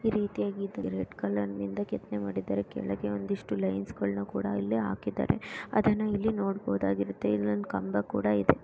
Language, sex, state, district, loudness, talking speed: Kannada, female, Karnataka, Dakshina Kannada, -31 LUFS, 160 wpm